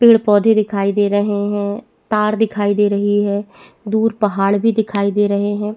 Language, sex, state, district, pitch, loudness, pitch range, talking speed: Hindi, female, Chhattisgarh, Bastar, 205 Hz, -16 LUFS, 205-215 Hz, 185 wpm